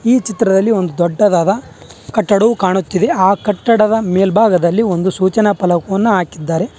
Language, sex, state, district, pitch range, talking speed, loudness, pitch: Kannada, male, Karnataka, Bangalore, 185-220 Hz, 115 wpm, -14 LUFS, 195 Hz